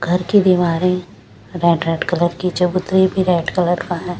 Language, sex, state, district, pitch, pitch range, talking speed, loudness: Hindi, female, Punjab, Pathankot, 180 Hz, 175-185 Hz, 170 wpm, -17 LUFS